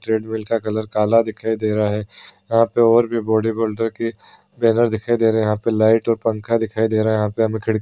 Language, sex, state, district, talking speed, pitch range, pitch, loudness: Hindi, male, Bihar, Kishanganj, 260 wpm, 110-115 Hz, 110 Hz, -19 LUFS